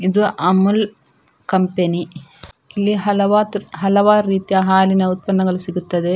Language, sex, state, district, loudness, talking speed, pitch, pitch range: Kannada, female, Karnataka, Dakshina Kannada, -17 LUFS, 95 wpm, 190 Hz, 180-205 Hz